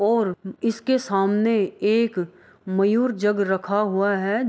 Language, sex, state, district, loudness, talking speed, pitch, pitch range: Maithili, female, Bihar, Araria, -22 LUFS, 120 wpm, 205 Hz, 195-225 Hz